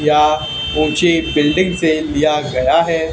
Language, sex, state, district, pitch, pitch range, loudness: Hindi, male, Haryana, Charkhi Dadri, 155 Hz, 150-165 Hz, -15 LUFS